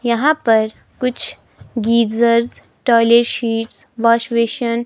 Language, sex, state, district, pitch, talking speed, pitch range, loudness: Hindi, female, Himachal Pradesh, Shimla, 235 Hz, 110 wpm, 230-240 Hz, -16 LUFS